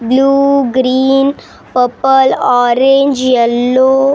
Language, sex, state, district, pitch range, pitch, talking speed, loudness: Hindi, female, Maharashtra, Gondia, 250-270 Hz, 265 Hz, 100 wpm, -11 LUFS